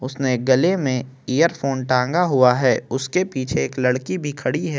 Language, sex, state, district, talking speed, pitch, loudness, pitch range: Hindi, male, Chhattisgarh, Kabirdham, 175 wpm, 130 Hz, -20 LUFS, 130-150 Hz